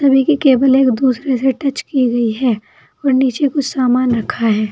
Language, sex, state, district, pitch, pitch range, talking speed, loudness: Hindi, female, Uttar Pradesh, Saharanpur, 260 Hz, 245-275 Hz, 205 wpm, -15 LUFS